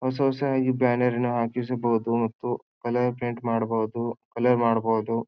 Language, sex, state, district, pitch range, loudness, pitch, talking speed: Kannada, male, Karnataka, Bijapur, 115-125 Hz, -25 LUFS, 120 Hz, 135 wpm